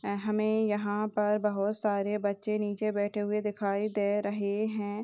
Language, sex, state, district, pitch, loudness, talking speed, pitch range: Hindi, male, Bihar, Purnia, 210 Hz, -30 LUFS, 155 wpm, 205-215 Hz